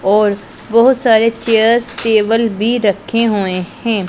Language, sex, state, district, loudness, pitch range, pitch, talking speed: Hindi, female, Punjab, Pathankot, -13 LUFS, 205-230 Hz, 225 Hz, 130 wpm